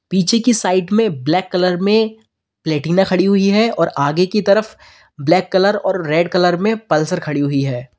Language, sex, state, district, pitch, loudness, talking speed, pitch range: Hindi, male, Uttar Pradesh, Lalitpur, 185 Hz, -16 LUFS, 190 wpm, 160-205 Hz